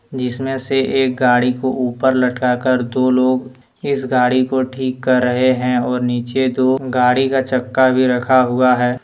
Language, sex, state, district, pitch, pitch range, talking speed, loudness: Hindi, male, Jharkhand, Deoghar, 130 Hz, 125-130 Hz, 175 wpm, -16 LUFS